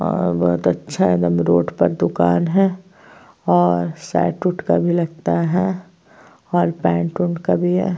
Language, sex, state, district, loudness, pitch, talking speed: Hindi, female, Uttar Pradesh, Jyotiba Phule Nagar, -18 LUFS, 165 Hz, 165 wpm